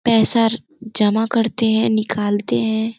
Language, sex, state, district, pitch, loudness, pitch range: Hindi, female, Uttar Pradesh, Gorakhpur, 225 Hz, -17 LUFS, 215-230 Hz